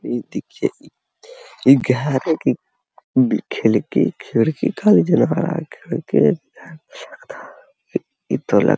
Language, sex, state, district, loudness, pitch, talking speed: Hindi, male, Uttar Pradesh, Hamirpur, -19 LUFS, 160 Hz, 55 wpm